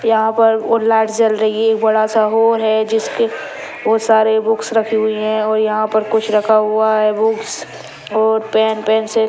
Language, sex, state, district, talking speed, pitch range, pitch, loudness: Hindi, female, Bihar, Saran, 200 wpm, 215-225 Hz, 220 Hz, -15 LUFS